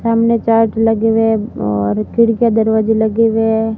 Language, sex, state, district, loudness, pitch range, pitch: Hindi, female, Rajasthan, Barmer, -14 LUFS, 220-225 Hz, 225 Hz